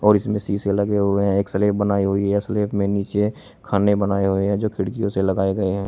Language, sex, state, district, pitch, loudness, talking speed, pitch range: Hindi, male, Uttar Pradesh, Shamli, 100 Hz, -21 LUFS, 235 wpm, 100-105 Hz